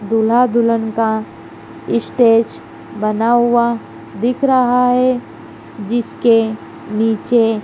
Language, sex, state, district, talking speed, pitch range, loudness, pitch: Hindi, female, Madhya Pradesh, Dhar, 85 wpm, 225-245 Hz, -15 LUFS, 230 Hz